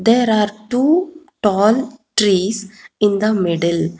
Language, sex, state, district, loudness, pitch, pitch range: English, female, Telangana, Hyderabad, -17 LUFS, 215 Hz, 195-245 Hz